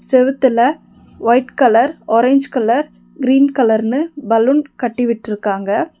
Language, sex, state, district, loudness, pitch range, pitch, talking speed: Tamil, female, Tamil Nadu, Nilgiris, -15 LUFS, 225-275 Hz, 245 Hz, 100 wpm